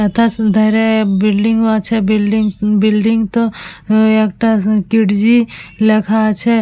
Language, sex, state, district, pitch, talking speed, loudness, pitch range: Bengali, female, West Bengal, Purulia, 215 Hz, 100 wpm, -13 LUFS, 210-225 Hz